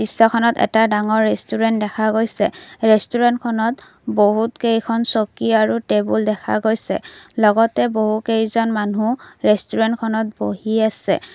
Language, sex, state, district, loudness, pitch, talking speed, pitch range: Assamese, female, Assam, Kamrup Metropolitan, -18 LUFS, 220 Hz, 105 wpm, 210-225 Hz